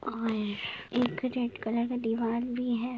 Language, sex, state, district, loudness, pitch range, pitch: Hindi, female, Jharkhand, Jamtara, -31 LUFS, 225-245 Hz, 235 Hz